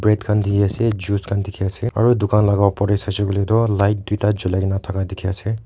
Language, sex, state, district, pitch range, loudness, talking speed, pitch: Nagamese, male, Nagaland, Kohima, 100-105 Hz, -19 LUFS, 255 wpm, 100 Hz